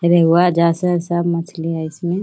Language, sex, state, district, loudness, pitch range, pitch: Hindi, female, Bihar, Jamui, -17 LUFS, 165-175 Hz, 170 Hz